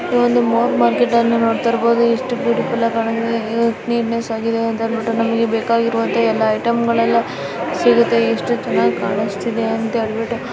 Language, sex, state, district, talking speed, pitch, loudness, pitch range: Kannada, female, Karnataka, Dharwad, 120 wpm, 230 Hz, -17 LUFS, 225-235 Hz